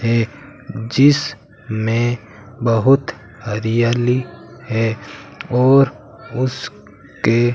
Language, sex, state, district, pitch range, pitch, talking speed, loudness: Hindi, male, Rajasthan, Bikaner, 115-135 Hz, 120 Hz, 80 wpm, -18 LUFS